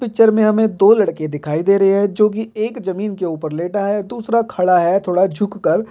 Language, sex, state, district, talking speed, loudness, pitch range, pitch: Hindi, male, Bihar, Purnia, 225 wpm, -16 LUFS, 185-220 Hz, 200 Hz